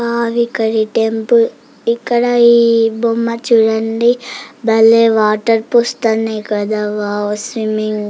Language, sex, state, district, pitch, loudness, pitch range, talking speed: Telugu, female, Andhra Pradesh, Chittoor, 225 Hz, -14 LUFS, 215-235 Hz, 110 wpm